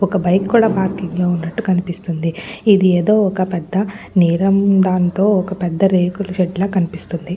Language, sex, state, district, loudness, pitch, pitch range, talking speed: Telugu, female, Andhra Pradesh, Guntur, -16 LUFS, 185 Hz, 175-195 Hz, 140 wpm